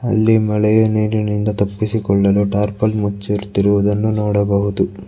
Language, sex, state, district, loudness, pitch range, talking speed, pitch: Kannada, male, Karnataka, Bangalore, -16 LUFS, 100-110 Hz, 85 wpm, 105 Hz